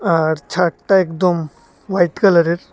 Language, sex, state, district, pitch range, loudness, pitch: Bengali, male, Tripura, West Tripura, 160-185 Hz, -16 LUFS, 170 Hz